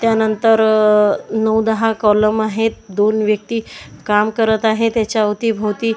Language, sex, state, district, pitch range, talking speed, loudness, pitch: Marathi, male, Maharashtra, Washim, 210-225 Hz, 130 wpm, -16 LUFS, 220 Hz